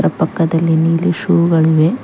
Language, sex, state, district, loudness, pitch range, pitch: Kannada, female, Karnataka, Koppal, -14 LUFS, 160-175 Hz, 165 Hz